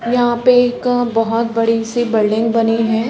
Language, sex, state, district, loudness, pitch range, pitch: Hindi, female, Chhattisgarh, Raigarh, -15 LUFS, 225-245 Hz, 230 Hz